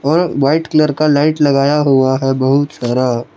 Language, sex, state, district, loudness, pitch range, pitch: Hindi, male, Jharkhand, Palamu, -13 LUFS, 130-150 Hz, 140 Hz